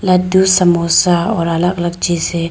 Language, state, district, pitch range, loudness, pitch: Hindi, Arunachal Pradesh, Lower Dibang Valley, 170-185 Hz, -13 LUFS, 175 Hz